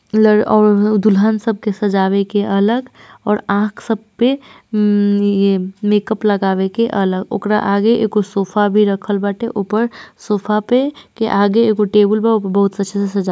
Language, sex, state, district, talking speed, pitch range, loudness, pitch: Hindi, female, Bihar, East Champaran, 150 wpm, 200-220 Hz, -15 LUFS, 210 Hz